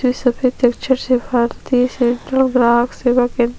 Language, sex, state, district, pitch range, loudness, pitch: Hindi, female, Chhattisgarh, Sukma, 240-255 Hz, -16 LUFS, 245 Hz